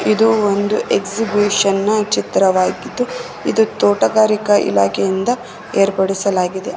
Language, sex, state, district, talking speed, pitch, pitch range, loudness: Kannada, female, Karnataka, Koppal, 80 wpm, 200 Hz, 190-215 Hz, -16 LUFS